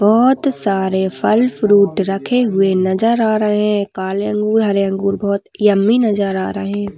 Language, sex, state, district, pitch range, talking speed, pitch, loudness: Hindi, female, Maharashtra, Nagpur, 195-215 Hz, 170 wpm, 205 Hz, -15 LUFS